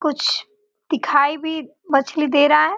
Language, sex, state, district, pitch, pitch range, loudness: Hindi, female, Bihar, Gopalganj, 305 Hz, 290-320 Hz, -19 LUFS